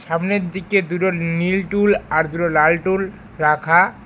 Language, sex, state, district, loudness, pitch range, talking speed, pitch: Bengali, male, West Bengal, Alipurduar, -18 LUFS, 165-195 Hz, 150 wpm, 180 Hz